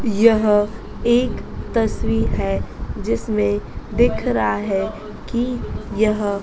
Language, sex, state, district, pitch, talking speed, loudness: Hindi, female, Madhya Pradesh, Dhar, 205 Hz, 105 wpm, -20 LUFS